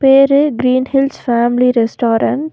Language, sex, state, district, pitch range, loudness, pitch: Tamil, female, Tamil Nadu, Nilgiris, 240-275 Hz, -13 LUFS, 255 Hz